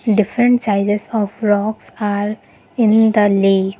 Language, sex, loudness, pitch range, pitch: English, female, -16 LUFS, 205-220 Hz, 210 Hz